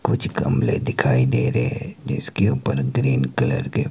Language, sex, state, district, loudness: Hindi, male, Himachal Pradesh, Shimla, -21 LUFS